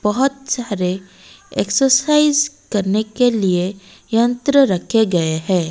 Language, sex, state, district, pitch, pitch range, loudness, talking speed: Hindi, female, Odisha, Malkangiri, 215 Hz, 190-270 Hz, -17 LUFS, 105 wpm